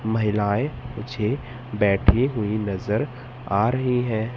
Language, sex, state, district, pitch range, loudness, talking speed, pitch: Hindi, male, Madhya Pradesh, Katni, 105-125 Hz, -23 LUFS, 110 wpm, 110 Hz